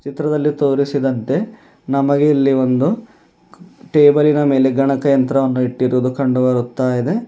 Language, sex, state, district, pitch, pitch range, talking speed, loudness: Kannada, male, Karnataka, Bidar, 140 Hz, 130-150 Hz, 115 wpm, -16 LUFS